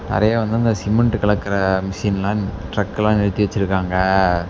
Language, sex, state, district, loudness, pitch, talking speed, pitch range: Tamil, male, Tamil Nadu, Namakkal, -19 LUFS, 100 Hz, 120 wpm, 95-105 Hz